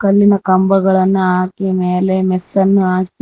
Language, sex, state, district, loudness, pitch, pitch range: Kannada, female, Karnataka, Koppal, -13 LUFS, 190 Hz, 185-195 Hz